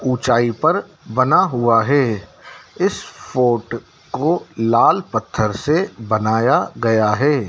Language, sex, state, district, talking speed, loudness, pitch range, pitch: Hindi, male, Madhya Pradesh, Dhar, 110 wpm, -17 LUFS, 115-140 Hz, 120 Hz